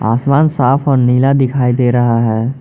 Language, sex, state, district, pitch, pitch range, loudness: Hindi, male, Jharkhand, Ranchi, 125 Hz, 120-135 Hz, -12 LUFS